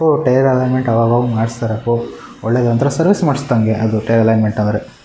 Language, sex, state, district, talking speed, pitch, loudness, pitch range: Kannada, male, Karnataka, Shimoga, 200 wpm, 120 Hz, -15 LUFS, 110-130 Hz